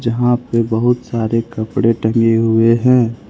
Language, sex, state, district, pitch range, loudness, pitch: Hindi, male, Jharkhand, Ranchi, 115-120 Hz, -15 LUFS, 115 Hz